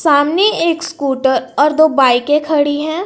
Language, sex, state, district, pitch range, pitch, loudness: Hindi, female, Jharkhand, Palamu, 285-325 Hz, 300 Hz, -13 LUFS